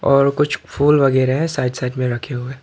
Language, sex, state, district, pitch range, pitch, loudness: Hindi, male, Tripura, Dhalai, 125-145 Hz, 130 Hz, -18 LUFS